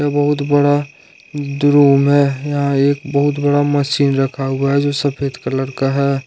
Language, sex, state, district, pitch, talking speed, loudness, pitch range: Hindi, male, Jharkhand, Ranchi, 140 Hz, 170 wpm, -15 LUFS, 140-145 Hz